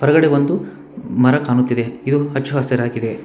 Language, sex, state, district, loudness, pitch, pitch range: Kannada, male, Karnataka, Bangalore, -17 LUFS, 130 Hz, 125-145 Hz